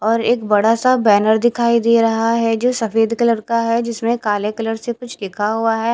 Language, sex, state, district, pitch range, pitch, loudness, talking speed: Hindi, female, Chandigarh, Chandigarh, 220-235 Hz, 230 Hz, -16 LUFS, 210 wpm